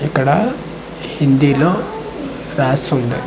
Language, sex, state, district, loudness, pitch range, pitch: Telugu, male, Andhra Pradesh, Manyam, -16 LUFS, 140-180 Hz, 150 Hz